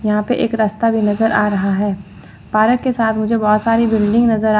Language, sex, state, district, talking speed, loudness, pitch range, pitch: Hindi, female, Chandigarh, Chandigarh, 235 wpm, -15 LUFS, 210-230 Hz, 220 Hz